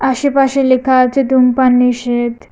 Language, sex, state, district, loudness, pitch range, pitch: Bengali, female, Tripura, West Tripura, -12 LUFS, 250-270 Hz, 260 Hz